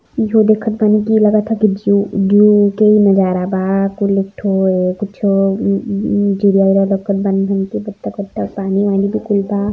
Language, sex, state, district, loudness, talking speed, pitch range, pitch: Hindi, male, Uttar Pradesh, Varanasi, -14 LUFS, 175 wpm, 195-210 Hz, 200 Hz